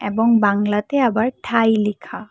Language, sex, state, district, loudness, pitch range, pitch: Bengali, female, Assam, Hailakandi, -18 LUFS, 205-230 Hz, 220 Hz